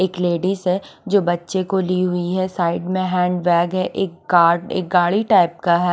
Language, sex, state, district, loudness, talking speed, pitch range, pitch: Hindi, female, Chandigarh, Chandigarh, -19 LUFS, 210 wpm, 175-185 Hz, 180 Hz